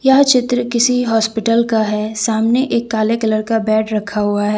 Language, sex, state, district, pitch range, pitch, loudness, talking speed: Hindi, female, Jharkhand, Deoghar, 215-240 Hz, 225 Hz, -15 LUFS, 195 wpm